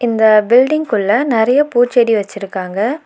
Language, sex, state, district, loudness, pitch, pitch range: Tamil, female, Tamil Nadu, Nilgiris, -13 LUFS, 225 Hz, 210-250 Hz